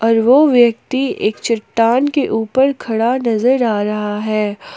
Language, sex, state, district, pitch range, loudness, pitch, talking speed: Hindi, female, Jharkhand, Palamu, 220-260 Hz, -15 LUFS, 230 Hz, 150 wpm